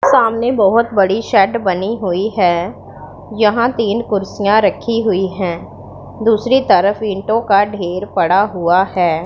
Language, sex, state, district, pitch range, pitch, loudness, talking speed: Hindi, female, Punjab, Pathankot, 190-225 Hz, 205 Hz, -15 LUFS, 135 wpm